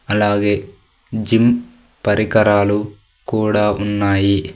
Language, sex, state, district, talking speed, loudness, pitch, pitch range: Telugu, male, Andhra Pradesh, Sri Satya Sai, 65 wpm, -17 LUFS, 105 Hz, 100-105 Hz